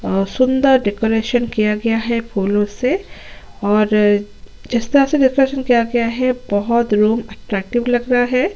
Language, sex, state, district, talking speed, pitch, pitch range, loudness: Hindi, female, Chhattisgarh, Sukma, 145 wpm, 235 Hz, 210-250 Hz, -17 LUFS